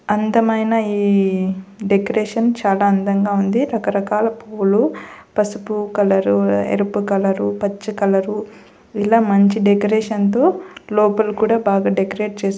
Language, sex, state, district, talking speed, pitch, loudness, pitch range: Telugu, female, Telangana, Hyderabad, 105 wpm, 205 Hz, -17 LUFS, 200-220 Hz